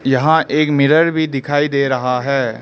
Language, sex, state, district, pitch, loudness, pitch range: Hindi, male, Arunachal Pradesh, Lower Dibang Valley, 145 Hz, -15 LUFS, 135-155 Hz